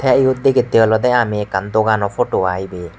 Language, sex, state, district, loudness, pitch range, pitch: Chakma, male, Tripura, West Tripura, -16 LUFS, 100-125 Hz, 110 Hz